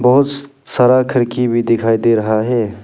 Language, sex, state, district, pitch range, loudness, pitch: Hindi, male, Arunachal Pradesh, Papum Pare, 115-130 Hz, -15 LUFS, 125 Hz